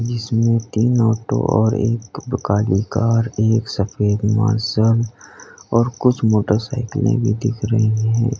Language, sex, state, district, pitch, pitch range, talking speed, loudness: Hindi, male, Uttar Pradesh, Lalitpur, 110 Hz, 110-115 Hz, 120 wpm, -18 LUFS